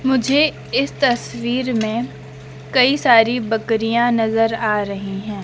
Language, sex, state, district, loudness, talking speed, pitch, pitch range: Hindi, female, Madhya Pradesh, Dhar, -18 LUFS, 120 wpm, 225 Hz, 210-250 Hz